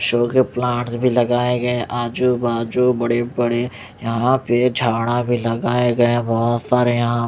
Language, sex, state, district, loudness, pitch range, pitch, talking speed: Hindi, male, Odisha, Malkangiri, -18 LUFS, 120-125 Hz, 120 Hz, 155 wpm